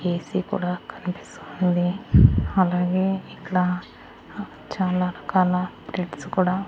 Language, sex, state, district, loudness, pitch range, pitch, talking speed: Telugu, female, Andhra Pradesh, Annamaya, -23 LUFS, 180-190 Hz, 180 Hz, 90 wpm